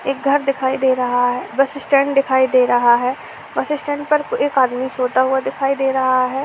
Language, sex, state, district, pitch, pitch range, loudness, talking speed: Hindi, female, Uttar Pradesh, Gorakhpur, 265 Hz, 255-275 Hz, -17 LUFS, 215 wpm